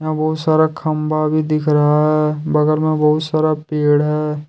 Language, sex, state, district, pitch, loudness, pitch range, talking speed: Hindi, male, Jharkhand, Deoghar, 155 Hz, -16 LUFS, 150-155 Hz, 175 wpm